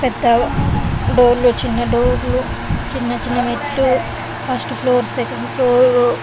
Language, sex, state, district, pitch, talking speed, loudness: Telugu, female, Andhra Pradesh, Anantapur, 240 Hz, 115 wpm, -17 LUFS